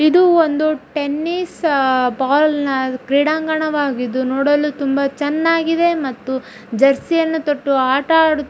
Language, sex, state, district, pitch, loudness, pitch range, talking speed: Kannada, female, Karnataka, Dharwad, 290 Hz, -17 LUFS, 270-315 Hz, 100 wpm